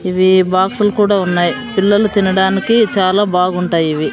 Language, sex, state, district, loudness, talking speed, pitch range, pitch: Telugu, female, Andhra Pradesh, Sri Satya Sai, -13 LUFS, 130 wpm, 185-205 Hz, 190 Hz